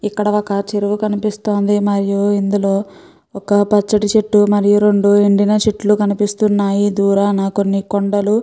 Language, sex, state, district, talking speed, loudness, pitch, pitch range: Telugu, female, Andhra Pradesh, Guntur, 120 wpm, -15 LUFS, 205 Hz, 200-210 Hz